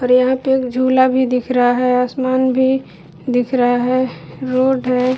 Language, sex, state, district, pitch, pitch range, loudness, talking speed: Hindi, female, Uttar Pradesh, Budaun, 255 Hz, 250-260 Hz, -16 LUFS, 185 wpm